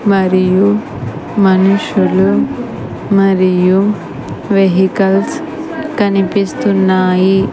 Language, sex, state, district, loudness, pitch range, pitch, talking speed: Telugu, female, Andhra Pradesh, Sri Satya Sai, -12 LUFS, 185-200 Hz, 195 Hz, 50 wpm